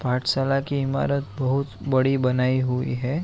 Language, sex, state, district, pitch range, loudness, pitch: Hindi, male, Bihar, Araria, 125-135 Hz, -23 LUFS, 130 Hz